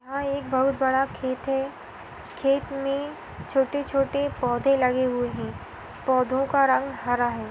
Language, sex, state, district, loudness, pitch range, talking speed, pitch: Hindi, female, Maharashtra, Dhule, -25 LUFS, 255-275 Hz, 135 wpm, 270 Hz